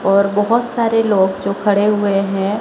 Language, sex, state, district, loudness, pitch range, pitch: Hindi, male, Chhattisgarh, Raipur, -16 LUFS, 195-210 Hz, 200 Hz